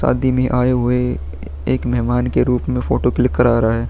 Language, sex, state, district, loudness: Hindi, male, Bihar, Vaishali, -17 LUFS